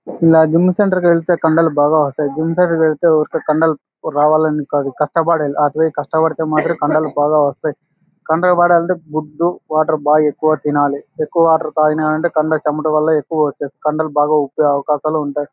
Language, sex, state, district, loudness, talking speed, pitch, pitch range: Telugu, male, Andhra Pradesh, Anantapur, -15 LUFS, 160 wpm, 155 Hz, 150-165 Hz